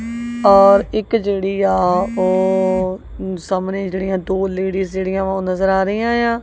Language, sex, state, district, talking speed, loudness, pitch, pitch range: Punjabi, female, Punjab, Kapurthala, 150 wpm, -17 LUFS, 190 Hz, 190-200 Hz